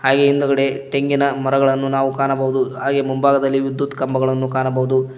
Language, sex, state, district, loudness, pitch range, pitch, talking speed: Kannada, male, Karnataka, Koppal, -18 LUFS, 130-140 Hz, 135 Hz, 125 wpm